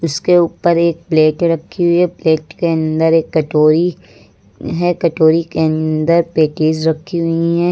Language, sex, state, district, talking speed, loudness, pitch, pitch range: Hindi, female, Uttar Pradesh, Lucknow, 155 wpm, -14 LUFS, 165 Hz, 155-170 Hz